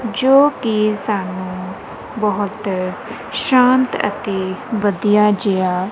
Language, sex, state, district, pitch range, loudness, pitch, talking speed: Punjabi, female, Punjab, Kapurthala, 190-225 Hz, -17 LUFS, 205 Hz, 80 wpm